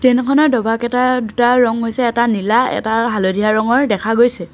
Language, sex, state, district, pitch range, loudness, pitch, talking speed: Assamese, female, Assam, Sonitpur, 220-250 Hz, -15 LUFS, 235 Hz, 170 wpm